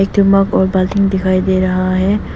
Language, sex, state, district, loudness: Hindi, female, Arunachal Pradesh, Papum Pare, -13 LUFS